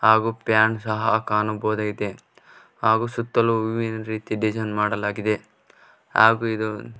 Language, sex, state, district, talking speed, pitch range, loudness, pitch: Kannada, male, Karnataka, Koppal, 110 wpm, 110-115 Hz, -22 LUFS, 110 Hz